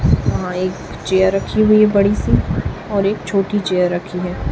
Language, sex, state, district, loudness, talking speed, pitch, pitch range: Hindi, female, Chhattisgarh, Raipur, -17 LUFS, 170 wpm, 195 Hz, 180-205 Hz